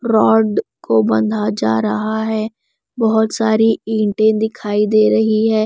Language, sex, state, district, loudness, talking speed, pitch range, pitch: Hindi, female, Bihar, West Champaran, -16 LUFS, 140 wpm, 205-220 Hz, 220 Hz